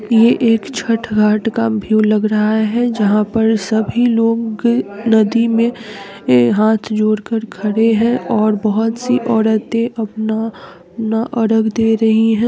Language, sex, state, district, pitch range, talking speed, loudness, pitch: Hindi, female, Bihar, East Champaran, 215-230 Hz, 145 wpm, -15 LUFS, 220 Hz